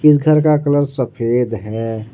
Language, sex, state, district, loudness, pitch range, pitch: Hindi, male, Jharkhand, Ranchi, -16 LUFS, 115-150 Hz, 130 Hz